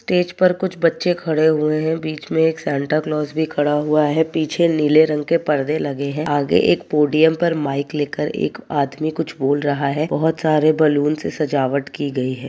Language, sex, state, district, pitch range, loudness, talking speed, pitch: Hindi, male, Uttar Pradesh, Jyotiba Phule Nagar, 145-160 Hz, -19 LUFS, 205 wpm, 155 Hz